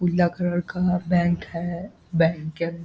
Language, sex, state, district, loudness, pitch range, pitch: Hindi, male, Bihar, Saharsa, -24 LUFS, 170-180 Hz, 175 Hz